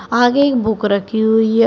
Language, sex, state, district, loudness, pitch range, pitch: Hindi, female, Uttar Pradesh, Shamli, -15 LUFS, 220-240 Hz, 225 Hz